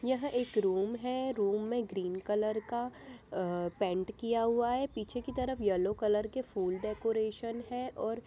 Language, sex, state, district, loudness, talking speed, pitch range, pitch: Hindi, female, Bihar, Jamui, -34 LUFS, 180 wpm, 200-245 Hz, 225 Hz